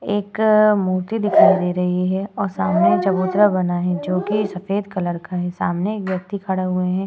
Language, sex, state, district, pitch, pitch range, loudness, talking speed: Hindi, female, Uttar Pradesh, Etah, 190 Hz, 180-205 Hz, -19 LUFS, 195 wpm